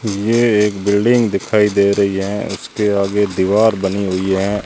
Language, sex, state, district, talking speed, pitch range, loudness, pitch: Hindi, male, Rajasthan, Jaisalmer, 170 wpm, 100-105 Hz, -15 LUFS, 100 Hz